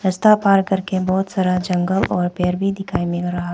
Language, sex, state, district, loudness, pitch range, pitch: Hindi, female, Arunachal Pradesh, Papum Pare, -19 LUFS, 180-195 Hz, 185 Hz